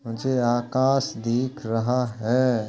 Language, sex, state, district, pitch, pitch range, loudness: Hindi, male, Uttar Pradesh, Jalaun, 120 Hz, 115-130 Hz, -24 LUFS